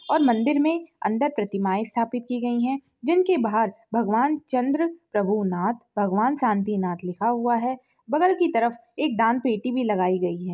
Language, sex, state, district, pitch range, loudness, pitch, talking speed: Hindi, female, Bihar, Begusarai, 210-280 Hz, -24 LUFS, 235 Hz, 170 wpm